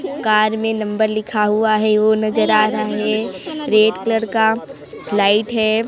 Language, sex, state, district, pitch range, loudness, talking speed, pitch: Hindi, female, Chhattisgarh, Sarguja, 215-220 Hz, -17 LUFS, 165 wpm, 215 Hz